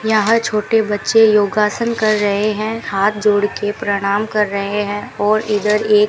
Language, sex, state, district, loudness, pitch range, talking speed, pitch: Hindi, female, Rajasthan, Bikaner, -16 LUFS, 205-215 Hz, 175 wpm, 210 Hz